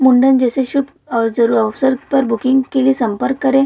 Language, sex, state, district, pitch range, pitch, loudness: Hindi, female, Bihar, Lakhisarai, 235-270 Hz, 260 Hz, -15 LUFS